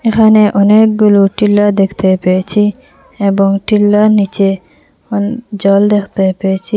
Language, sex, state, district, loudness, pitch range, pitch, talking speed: Bengali, female, Assam, Hailakandi, -11 LUFS, 195-210 Hz, 205 Hz, 105 wpm